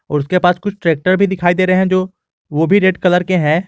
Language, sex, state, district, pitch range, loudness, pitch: Hindi, male, Jharkhand, Garhwa, 175-185 Hz, -14 LUFS, 185 Hz